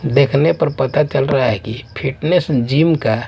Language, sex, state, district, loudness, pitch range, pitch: Hindi, male, Bihar, Katihar, -16 LUFS, 125-150 Hz, 135 Hz